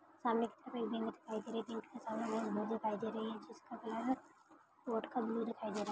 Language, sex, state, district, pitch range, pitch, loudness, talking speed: Hindi, female, Maharashtra, Dhule, 220-240 Hz, 225 Hz, -41 LUFS, 245 wpm